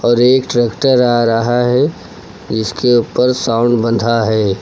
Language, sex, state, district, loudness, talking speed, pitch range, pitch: Hindi, male, Uttar Pradesh, Lucknow, -13 LUFS, 145 wpm, 115-125 Hz, 120 Hz